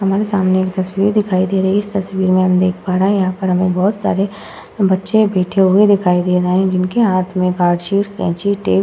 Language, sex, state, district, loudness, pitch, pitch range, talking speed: Hindi, female, Uttar Pradesh, Muzaffarnagar, -15 LUFS, 190 Hz, 185-200 Hz, 240 wpm